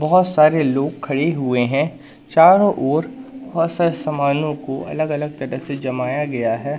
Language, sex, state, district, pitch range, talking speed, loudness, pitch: Hindi, male, Madhya Pradesh, Katni, 135-165 Hz, 170 wpm, -18 LUFS, 150 Hz